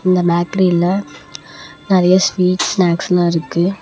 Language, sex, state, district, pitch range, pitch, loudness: Tamil, female, Tamil Nadu, Namakkal, 175-185 Hz, 180 Hz, -15 LUFS